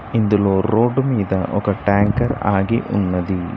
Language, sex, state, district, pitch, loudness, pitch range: Telugu, male, Telangana, Mahabubabad, 100 Hz, -18 LUFS, 95-115 Hz